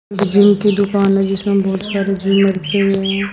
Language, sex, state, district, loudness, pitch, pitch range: Hindi, female, Haryana, Jhajjar, -15 LUFS, 195 Hz, 195-200 Hz